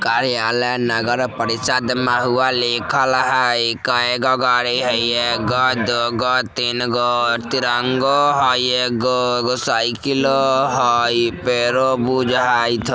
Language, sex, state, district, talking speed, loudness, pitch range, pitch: Maithili, male, Bihar, Vaishali, 115 wpm, -17 LUFS, 120-130 Hz, 125 Hz